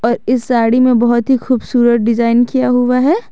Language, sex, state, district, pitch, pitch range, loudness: Hindi, male, Jharkhand, Garhwa, 245 Hz, 235-255 Hz, -13 LUFS